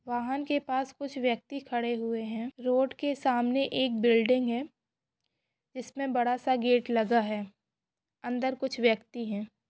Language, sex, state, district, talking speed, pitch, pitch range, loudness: Hindi, female, Maharashtra, Solapur, 150 wpm, 245 Hz, 235-265 Hz, -29 LUFS